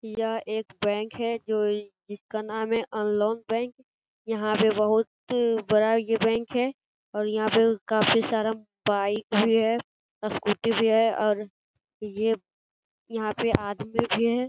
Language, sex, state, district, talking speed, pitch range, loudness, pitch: Hindi, male, Bihar, Jamui, 140 wpm, 215-230 Hz, -26 LUFS, 220 Hz